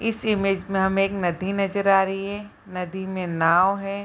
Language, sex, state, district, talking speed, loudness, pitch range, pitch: Hindi, female, Bihar, Bhagalpur, 205 wpm, -23 LUFS, 185-200 Hz, 195 Hz